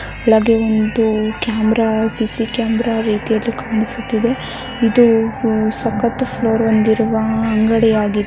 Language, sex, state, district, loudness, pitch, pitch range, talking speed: Kannada, male, Karnataka, Mysore, -16 LUFS, 225 Hz, 220-230 Hz, 95 wpm